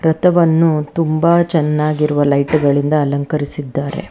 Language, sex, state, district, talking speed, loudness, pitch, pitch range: Kannada, female, Karnataka, Bangalore, 85 wpm, -15 LUFS, 150 Hz, 145-165 Hz